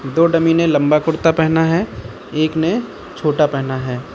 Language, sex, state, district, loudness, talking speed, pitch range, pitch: Hindi, male, Uttar Pradesh, Lucknow, -16 LUFS, 175 wpm, 145-165 Hz, 160 Hz